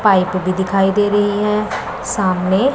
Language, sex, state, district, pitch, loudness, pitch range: Hindi, male, Punjab, Pathankot, 200 Hz, -16 LUFS, 185-205 Hz